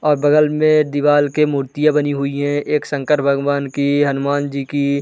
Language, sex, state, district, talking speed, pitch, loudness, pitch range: Hindi, male, Uttar Pradesh, Varanasi, 190 wpm, 145 Hz, -17 LUFS, 140-150 Hz